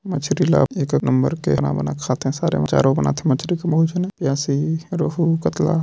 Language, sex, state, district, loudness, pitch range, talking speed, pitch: Hindi, male, Chhattisgarh, Balrampur, -20 LUFS, 130-170 Hz, 205 wpm, 145 Hz